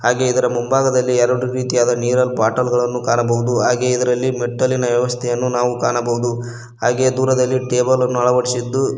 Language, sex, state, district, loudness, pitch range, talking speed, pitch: Kannada, male, Karnataka, Koppal, -17 LUFS, 120-125 Hz, 135 wpm, 125 Hz